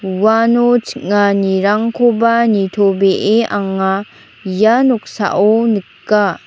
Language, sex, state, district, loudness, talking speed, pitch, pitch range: Garo, female, Meghalaya, North Garo Hills, -14 LUFS, 65 wpm, 210 Hz, 195-230 Hz